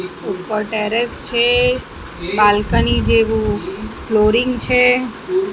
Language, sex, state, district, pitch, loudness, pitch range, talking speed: Gujarati, female, Maharashtra, Mumbai Suburban, 215 Hz, -16 LUFS, 180-250 Hz, 75 wpm